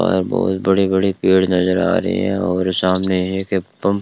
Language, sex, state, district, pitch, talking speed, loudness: Hindi, male, Rajasthan, Bikaner, 95 Hz, 210 wpm, -17 LUFS